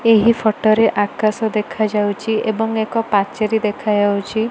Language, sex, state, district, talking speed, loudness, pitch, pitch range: Odia, female, Odisha, Malkangiri, 145 wpm, -17 LUFS, 215 Hz, 210-220 Hz